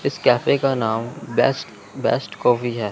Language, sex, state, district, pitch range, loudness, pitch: Hindi, male, Chandigarh, Chandigarh, 115-135 Hz, -20 LUFS, 120 Hz